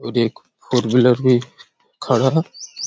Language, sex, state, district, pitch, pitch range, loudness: Hindi, male, Chhattisgarh, Raigarh, 125 Hz, 120-130 Hz, -18 LUFS